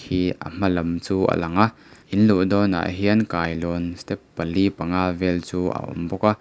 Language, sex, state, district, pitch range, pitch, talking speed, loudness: Mizo, male, Mizoram, Aizawl, 85-100 Hz, 90 Hz, 215 wpm, -22 LUFS